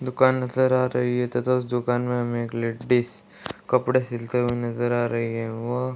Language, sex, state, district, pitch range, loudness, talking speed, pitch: Hindi, male, Bihar, Darbhanga, 120-125 Hz, -24 LUFS, 210 wpm, 120 Hz